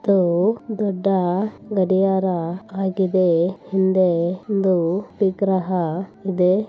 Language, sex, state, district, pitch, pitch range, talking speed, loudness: Kannada, female, Karnataka, Bellary, 190 Hz, 180-195 Hz, 70 wpm, -20 LUFS